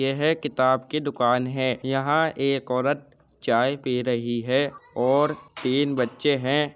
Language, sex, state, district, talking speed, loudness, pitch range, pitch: Hindi, male, Uttar Pradesh, Jyotiba Phule Nagar, 140 wpm, -24 LUFS, 125-145 Hz, 135 Hz